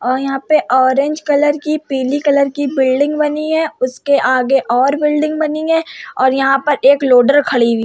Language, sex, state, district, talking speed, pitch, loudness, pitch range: Hindi, female, Uttar Pradesh, Hamirpur, 200 wpm, 280 Hz, -14 LUFS, 260-300 Hz